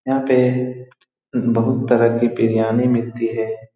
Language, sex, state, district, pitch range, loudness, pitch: Hindi, male, Bihar, Saran, 115-125 Hz, -18 LUFS, 120 Hz